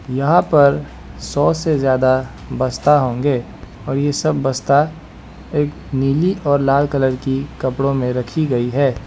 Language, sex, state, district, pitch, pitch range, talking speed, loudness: Hindi, male, Arunachal Pradesh, Lower Dibang Valley, 135 Hz, 125-145 Hz, 140 wpm, -17 LUFS